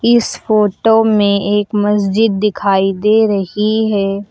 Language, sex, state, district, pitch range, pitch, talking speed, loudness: Hindi, female, Uttar Pradesh, Lucknow, 200-220 Hz, 210 Hz, 125 wpm, -13 LUFS